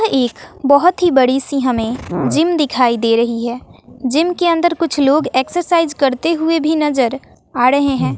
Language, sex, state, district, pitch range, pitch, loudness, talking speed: Hindi, female, Bihar, West Champaran, 255-330 Hz, 280 Hz, -15 LUFS, 185 wpm